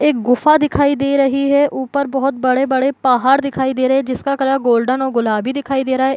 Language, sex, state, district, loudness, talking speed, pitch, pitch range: Hindi, female, Bihar, Gopalganj, -15 LUFS, 225 wpm, 270 Hz, 260-275 Hz